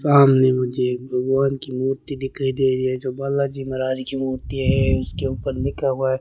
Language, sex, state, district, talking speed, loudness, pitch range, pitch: Hindi, male, Rajasthan, Bikaner, 205 wpm, -21 LUFS, 130-135 Hz, 130 Hz